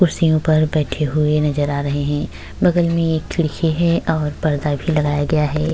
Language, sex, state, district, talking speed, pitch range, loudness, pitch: Hindi, female, Uttar Pradesh, Jyotiba Phule Nagar, 200 wpm, 150-165 Hz, -18 LUFS, 155 Hz